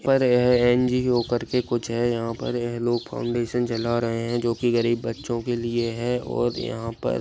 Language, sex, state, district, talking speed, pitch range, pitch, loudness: Hindi, male, Maharashtra, Pune, 210 wpm, 115-120 Hz, 120 Hz, -24 LUFS